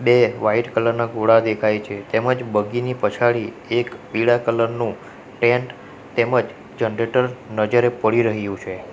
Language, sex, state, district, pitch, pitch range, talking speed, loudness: Gujarati, male, Gujarat, Valsad, 115 Hz, 110-120 Hz, 140 wpm, -20 LUFS